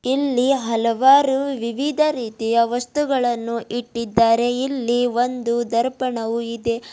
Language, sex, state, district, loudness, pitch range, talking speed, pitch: Kannada, female, Karnataka, Bidar, -20 LUFS, 230-260 Hz, 85 wpm, 240 Hz